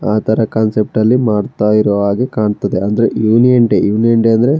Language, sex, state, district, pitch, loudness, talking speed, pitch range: Kannada, male, Karnataka, Shimoga, 110 Hz, -13 LUFS, 170 wpm, 105-115 Hz